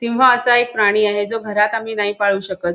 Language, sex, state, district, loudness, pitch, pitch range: Marathi, female, Goa, North and South Goa, -16 LUFS, 210 Hz, 205-235 Hz